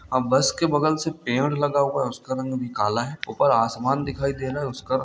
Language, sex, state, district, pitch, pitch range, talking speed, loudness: Hindi, male, Bihar, Samastipur, 130 Hz, 130-145 Hz, 260 wpm, -23 LUFS